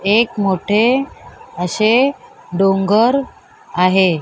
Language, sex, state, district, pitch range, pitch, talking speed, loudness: Marathi, female, Maharashtra, Mumbai Suburban, 190-235 Hz, 205 Hz, 70 wpm, -15 LUFS